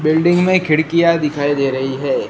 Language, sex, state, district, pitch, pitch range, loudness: Hindi, female, Gujarat, Gandhinagar, 155 Hz, 145-175 Hz, -15 LUFS